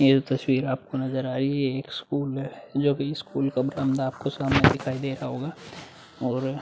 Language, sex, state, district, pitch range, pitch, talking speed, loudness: Hindi, male, Uttar Pradesh, Budaun, 130-140 Hz, 135 Hz, 200 wpm, -26 LUFS